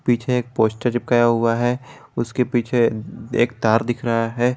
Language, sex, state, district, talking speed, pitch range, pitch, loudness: Hindi, male, Jharkhand, Garhwa, 170 wpm, 115-125 Hz, 120 Hz, -20 LUFS